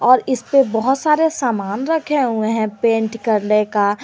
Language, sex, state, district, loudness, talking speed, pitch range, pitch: Hindi, female, Jharkhand, Garhwa, -17 LUFS, 180 wpm, 215-270 Hz, 230 Hz